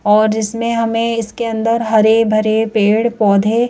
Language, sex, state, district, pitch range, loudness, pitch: Hindi, female, Madhya Pradesh, Bhopal, 215-230 Hz, -14 LUFS, 225 Hz